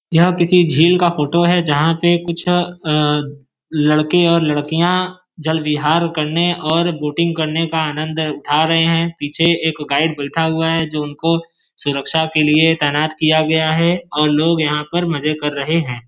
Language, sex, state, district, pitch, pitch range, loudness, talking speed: Hindi, male, Uttar Pradesh, Varanasi, 160 Hz, 150-170 Hz, -16 LUFS, 170 wpm